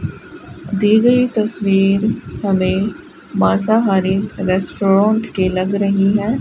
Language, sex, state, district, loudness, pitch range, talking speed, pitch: Hindi, female, Rajasthan, Bikaner, -16 LUFS, 195-215 Hz, 95 wpm, 200 Hz